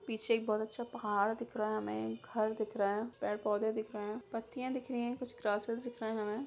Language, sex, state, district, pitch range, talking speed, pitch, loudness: Hindi, female, Bihar, Begusarai, 210-235 Hz, 260 wpm, 220 Hz, -37 LUFS